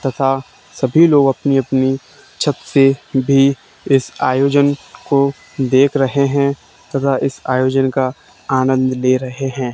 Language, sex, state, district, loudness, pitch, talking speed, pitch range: Hindi, male, Haryana, Charkhi Dadri, -16 LUFS, 135 Hz, 135 wpm, 130-140 Hz